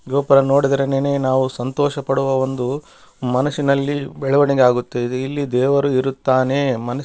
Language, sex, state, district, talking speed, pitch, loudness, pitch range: Kannada, male, Karnataka, Bellary, 120 wpm, 135 Hz, -18 LUFS, 130-140 Hz